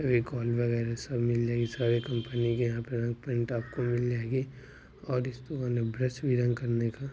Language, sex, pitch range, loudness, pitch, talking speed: Maithili, male, 120-125 Hz, -31 LUFS, 120 Hz, 160 wpm